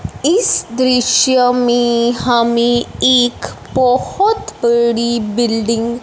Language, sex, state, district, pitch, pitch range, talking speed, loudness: Hindi, female, Punjab, Fazilka, 240 Hz, 235-255 Hz, 90 wpm, -14 LUFS